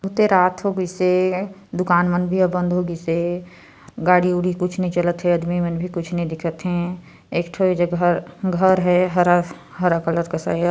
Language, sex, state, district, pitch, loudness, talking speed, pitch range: Hindi, female, Chhattisgarh, Sarguja, 180 Hz, -20 LUFS, 180 wpm, 175-185 Hz